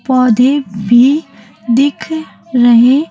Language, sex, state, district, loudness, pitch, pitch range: Hindi, female, Chhattisgarh, Raipur, -11 LUFS, 255 Hz, 235-280 Hz